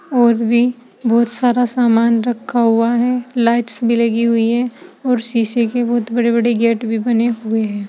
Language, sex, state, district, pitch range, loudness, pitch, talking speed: Hindi, female, Uttar Pradesh, Saharanpur, 230-240 Hz, -15 LUFS, 235 Hz, 180 wpm